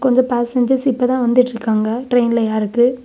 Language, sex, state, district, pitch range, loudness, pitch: Tamil, female, Tamil Nadu, Kanyakumari, 235-255 Hz, -16 LUFS, 245 Hz